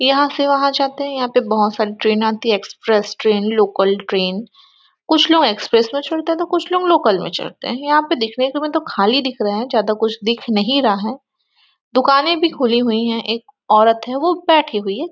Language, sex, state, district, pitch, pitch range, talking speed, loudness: Hindi, female, Chhattisgarh, Raigarh, 250 Hz, 215-305 Hz, 220 wpm, -16 LUFS